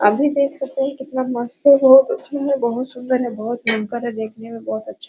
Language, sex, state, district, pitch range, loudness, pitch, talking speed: Hindi, female, Bihar, Araria, 230-270 Hz, -18 LUFS, 250 Hz, 260 wpm